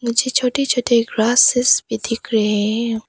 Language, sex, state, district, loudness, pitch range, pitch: Hindi, female, Arunachal Pradesh, Papum Pare, -16 LUFS, 225-245 Hz, 235 Hz